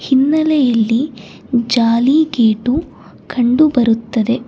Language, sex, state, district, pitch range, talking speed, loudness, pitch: Kannada, female, Karnataka, Bangalore, 230-280 Hz, 65 wpm, -14 LUFS, 245 Hz